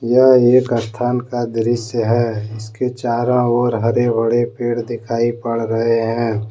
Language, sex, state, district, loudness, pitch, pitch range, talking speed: Hindi, male, Jharkhand, Deoghar, -17 LUFS, 120 Hz, 115-120 Hz, 150 wpm